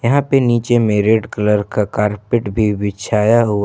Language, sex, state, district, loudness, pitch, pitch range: Hindi, male, Jharkhand, Ranchi, -16 LUFS, 110 Hz, 105-120 Hz